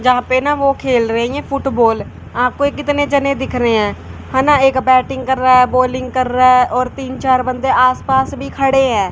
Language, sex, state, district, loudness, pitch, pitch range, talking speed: Hindi, female, Haryana, Jhajjar, -14 LUFS, 255 Hz, 250-270 Hz, 215 wpm